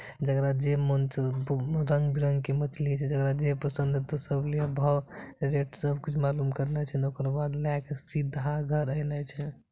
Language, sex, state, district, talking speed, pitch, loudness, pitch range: Maithili, male, Bihar, Supaul, 180 wpm, 145 Hz, -29 LUFS, 140-145 Hz